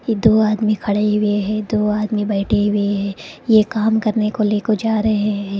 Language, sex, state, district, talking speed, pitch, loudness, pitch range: Hindi, female, Karnataka, Koppal, 205 wpm, 210 Hz, -17 LUFS, 205-215 Hz